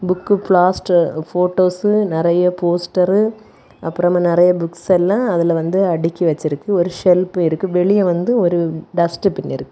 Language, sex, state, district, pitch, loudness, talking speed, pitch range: Tamil, female, Tamil Nadu, Kanyakumari, 180 Hz, -16 LUFS, 135 wpm, 170-185 Hz